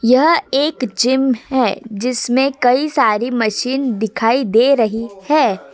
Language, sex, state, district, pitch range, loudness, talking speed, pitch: Hindi, female, Uttar Pradesh, Hamirpur, 225-265 Hz, -16 LUFS, 125 wpm, 250 Hz